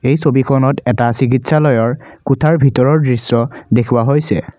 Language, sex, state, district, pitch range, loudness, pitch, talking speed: Assamese, male, Assam, Kamrup Metropolitan, 120-140 Hz, -13 LUFS, 130 Hz, 115 wpm